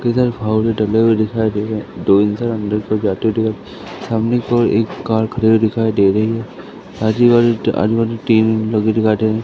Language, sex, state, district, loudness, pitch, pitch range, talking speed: Hindi, male, Madhya Pradesh, Katni, -16 LUFS, 110 Hz, 110-115 Hz, 230 wpm